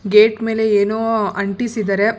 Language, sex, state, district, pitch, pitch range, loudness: Kannada, female, Karnataka, Bangalore, 215 Hz, 205-225 Hz, -17 LUFS